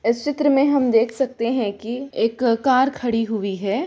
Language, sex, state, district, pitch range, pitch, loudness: Hindi, female, Bihar, Gopalganj, 225-270 Hz, 245 Hz, -20 LUFS